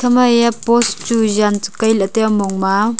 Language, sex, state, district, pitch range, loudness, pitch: Wancho, female, Arunachal Pradesh, Longding, 205-235 Hz, -15 LUFS, 220 Hz